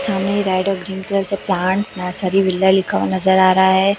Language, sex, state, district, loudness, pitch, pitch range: Hindi, female, Chhattisgarh, Raipur, -17 LUFS, 190 Hz, 185-195 Hz